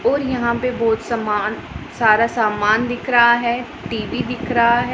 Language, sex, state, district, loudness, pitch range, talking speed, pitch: Hindi, female, Punjab, Pathankot, -18 LUFS, 225-245 Hz, 170 wpm, 235 Hz